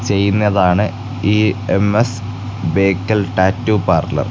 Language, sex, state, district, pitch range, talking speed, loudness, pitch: Malayalam, male, Kerala, Kasaragod, 95-110 Hz, 95 wpm, -16 LUFS, 105 Hz